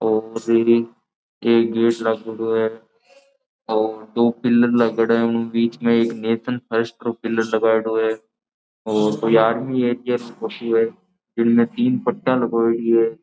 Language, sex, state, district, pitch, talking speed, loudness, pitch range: Marwari, male, Rajasthan, Nagaur, 115 Hz, 125 wpm, -20 LUFS, 115-120 Hz